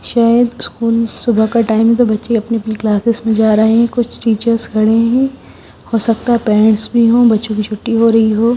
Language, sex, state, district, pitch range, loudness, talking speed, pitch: Hindi, female, Odisha, Sambalpur, 220-235 Hz, -13 LUFS, 210 wpm, 230 Hz